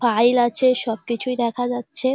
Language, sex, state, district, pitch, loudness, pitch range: Bengali, female, West Bengal, Dakshin Dinajpur, 245 Hz, -20 LUFS, 235-255 Hz